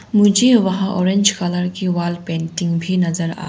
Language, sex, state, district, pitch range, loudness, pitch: Hindi, female, Arunachal Pradesh, Longding, 175-195 Hz, -17 LUFS, 180 Hz